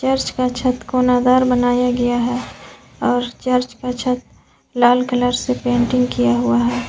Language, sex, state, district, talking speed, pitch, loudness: Hindi, female, Jharkhand, Garhwa, 155 wpm, 245 Hz, -17 LUFS